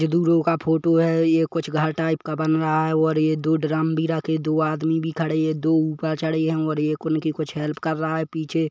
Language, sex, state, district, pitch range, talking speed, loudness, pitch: Hindi, male, Chhattisgarh, Kabirdham, 155-160 Hz, 270 wpm, -22 LUFS, 160 Hz